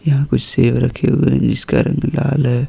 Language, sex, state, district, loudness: Hindi, male, Jharkhand, Ranchi, -16 LUFS